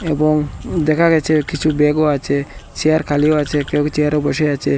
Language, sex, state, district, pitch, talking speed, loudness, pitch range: Bengali, male, Assam, Hailakandi, 150 Hz, 165 wpm, -16 LUFS, 145-155 Hz